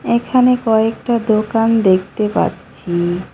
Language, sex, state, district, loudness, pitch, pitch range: Bengali, female, West Bengal, Cooch Behar, -15 LUFS, 225 Hz, 190-235 Hz